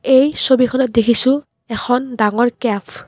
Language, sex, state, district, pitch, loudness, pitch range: Assamese, female, Assam, Kamrup Metropolitan, 245 Hz, -15 LUFS, 230-260 Hz